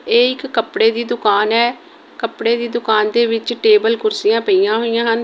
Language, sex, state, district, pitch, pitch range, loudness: Punjabi, female, Punjab, Kapurthala, 235 Hz, 230-340 Hz, -16 LUFS